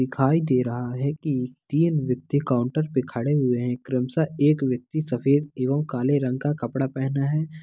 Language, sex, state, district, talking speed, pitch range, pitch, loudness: Hindi, male, Bihar, Purnia, 180 wpm, 125-145 Hz, 135 Hz, -24 LUFS